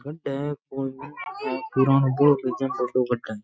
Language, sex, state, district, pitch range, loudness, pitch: Rajasthani, male, Rajasthan, Nagaur, 125-145 Hz, -24 LUFS, 135 Hz